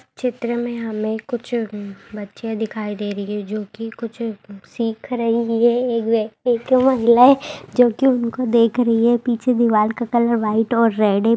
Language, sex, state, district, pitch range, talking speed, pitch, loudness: Hindi, female, Bihar, Muzaffarpur, 215-240 Hz, 160 wpm, 230 Hz, -19 LUFS